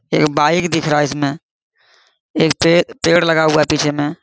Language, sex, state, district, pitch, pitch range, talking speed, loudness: Hindi, male, Jharkhand, Sahebganj, 155 Hz, 150-165 Hz, 200 wpm, -15 LUFS